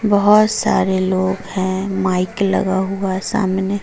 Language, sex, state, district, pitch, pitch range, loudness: Hindi, female, Uttar Pradesh, Lucknow, 190 Hz, 190-200 Hz, -17 LUFS